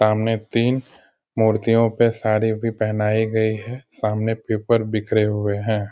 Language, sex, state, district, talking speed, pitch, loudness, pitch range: Hindi, male, Bihar, Sitamarhi, 140 wpm, 110 Hz, -21 LUFS, 110-115 Hz